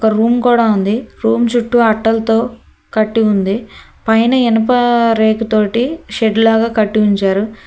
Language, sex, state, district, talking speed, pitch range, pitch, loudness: Telugu, female, Telangana, Hyderabad, 115 wpm, 215-235 Hz, 225 Hz, -13 LUFS